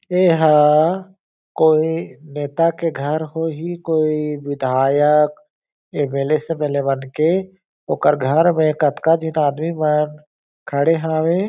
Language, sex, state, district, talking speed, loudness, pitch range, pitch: Chhattisgarhi, male, Chhattisgarh, Jashpur, 110 wpm, -18 LUFS, 150-165 Hz, 155 Hz